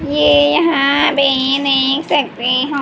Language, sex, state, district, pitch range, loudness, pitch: Hindi, male, Haryana, Rohtak, 270-290 Hz, -13 LUFS, 280 Hz